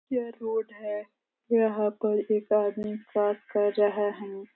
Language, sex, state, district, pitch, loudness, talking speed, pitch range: Hindi, female, Uttar Pradesh, Ghazipur, 210 Hz, -28 LUFS, 145 wpm, 205-220 Hz